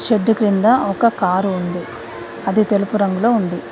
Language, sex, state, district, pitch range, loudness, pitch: Telugu, female, Telangana, Mahabubabad, 180-220 Hz, -17 LUFS, 200 Hz